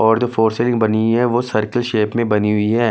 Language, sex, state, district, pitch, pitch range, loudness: Hindi, male, Delhi, New Delhi, 115 Hz, 110-120 Hz, -17 LUFS